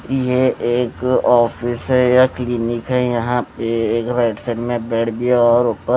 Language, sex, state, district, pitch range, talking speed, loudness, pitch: Hindi, male, Odisha, Nuapada, 115-125 Hz, 180 wpm, -17 LUFS, 120 Hz